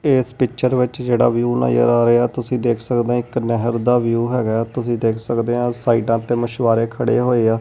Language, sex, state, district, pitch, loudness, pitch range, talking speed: Punjabi, male, Punjab, Kapurthala, 120 Hz, -18 LUFS, 115-125 Hz, 205 wpm